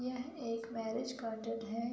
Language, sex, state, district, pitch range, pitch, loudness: Hindi, female, Uttar Pradesh, Budaun, 225-245 Hz, 230 Hz, -40 LUFS